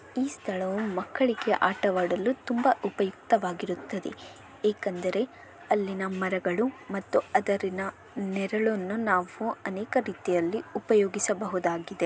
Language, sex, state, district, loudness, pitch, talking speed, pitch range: Kannada, female, Karnataka, Bellary, -28 LUFS, 200 Hz, 70 wpm, 185-220 Hz